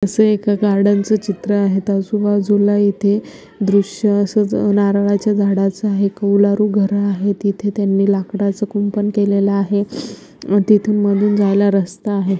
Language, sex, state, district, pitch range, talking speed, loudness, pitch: Marathi, female, Maharashtra, Solapur, 200-205 Hz, 130 wpm, -16 LUFS, 205 Hz